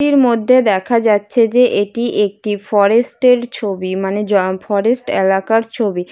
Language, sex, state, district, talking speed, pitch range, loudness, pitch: Bengali, female, West Bengal, Jalpaiguri, 145 wpm, 200-240 Hz, -15 LUFS, 210 Hz